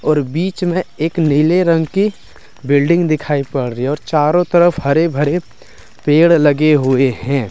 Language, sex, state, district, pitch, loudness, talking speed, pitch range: Hindi, male, Jharkhand, Deoghar, 150 Hz, -14 LUFS, 160 wpm, 140-170 Hz